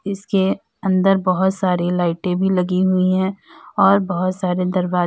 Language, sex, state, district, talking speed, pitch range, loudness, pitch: Hindi, female, Uttar Pradesh, Lalitpur, 155 wpm, 180-190 Hz, -18 LUFS, 185 Hz